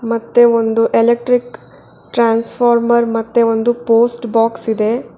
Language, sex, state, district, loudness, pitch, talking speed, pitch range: Kannada, female, Karnataka, Bangalore, -14 LUFS, 230 Hz, 105 wpm, 230-240 Hz